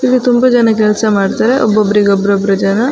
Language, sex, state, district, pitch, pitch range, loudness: Kannada, female, Karnataka, Dakshina Kannada, 215 Hz, 200-245 Hz, -11 LUFS